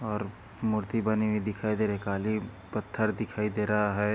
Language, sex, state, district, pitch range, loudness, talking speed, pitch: Hindi, male, Maharashtra, Dhule, 105-110 Hz, -30 LUFS, 190 wpm, 105 Hz